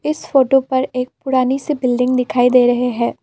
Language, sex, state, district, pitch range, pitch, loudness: Hindi, female, Assam, Kamrup Metropolitan, 250-270 Hz, 255 Hz, -16 LUFS